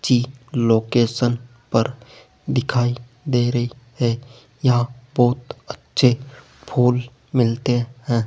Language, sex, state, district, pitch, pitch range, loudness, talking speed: Hindi, male, Rajasthan, Jaipur, 120 Hz, 120-125 Hz, -21 LUFS, 95 wpm